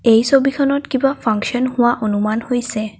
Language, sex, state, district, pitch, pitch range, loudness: Assamese, female, Assam, Kamrup Metropolitan, 245 Hz, 220-270 Hz, -17 LUFS